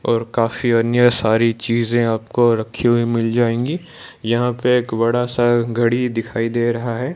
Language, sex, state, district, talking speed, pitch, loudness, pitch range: Hindi, male, Odisha, Malkangiri, 165 wpm, 120 Hz, -18 LUFS, 115-120 Hz